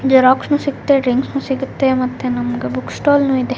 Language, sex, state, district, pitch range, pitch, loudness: Kannada, female, Karnataka, Raichur, 250-275 Hz, 260 Hz, -16 LUFS